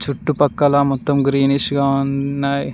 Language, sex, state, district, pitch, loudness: Telugu, male, Telangana, Mahabubabad, 140 Hz, -17 LUFS